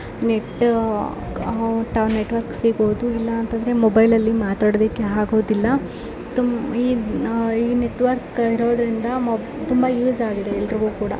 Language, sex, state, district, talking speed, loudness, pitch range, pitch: Kannada, female, Karnataka, Shimoga, 95 wpm, -20 LUFS, 220-240 Hz, 230 Hz